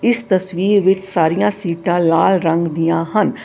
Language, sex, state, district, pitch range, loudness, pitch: Punjabi, female, Karnataka, Bangalore, 165-200 Hz, -15 LUFS, 185 Hz